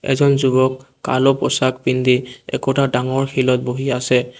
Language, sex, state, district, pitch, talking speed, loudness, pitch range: Assamese, male, Assam, Kamrup Metropolitan, 130 Hz, 125 wpm, -17 LUFS, 125-135 Hz